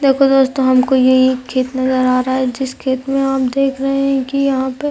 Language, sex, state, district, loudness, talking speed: Hindi, female, Chhattisgarh, Raigarh, -15 LUFS, 255 wpm